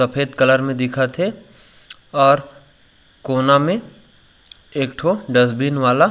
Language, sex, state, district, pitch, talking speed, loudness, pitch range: Chhattisgarhi, male, Chhattisgarh, Raigarh, 135 Hz, 120 wpm, -17 LUFS, 130-145 Hz